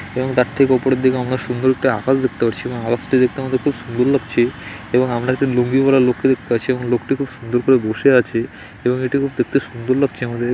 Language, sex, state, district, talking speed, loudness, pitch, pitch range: Bengali, male, West Bengal, Dakshin Dinajpur, 260 wpm, -18 LUFS, 125 Hz, 120-130 Hz